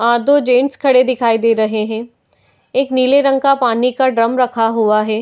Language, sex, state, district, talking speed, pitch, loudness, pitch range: Hindi, female, Uttar Pradesh, Jalaun, 205 wpm, 245 Hz, -14 LUFS, 225-265 Hz